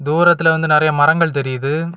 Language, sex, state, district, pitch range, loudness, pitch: Tamil, male, Tamil Nadu, Kanyakumari, 145-165 Hz, -15 LUFS, 155 Hz